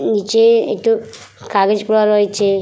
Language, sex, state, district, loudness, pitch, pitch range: Bengali, female, West Bengal, Purulia, -15 LUFS, 210 Hz, 205-225 Hz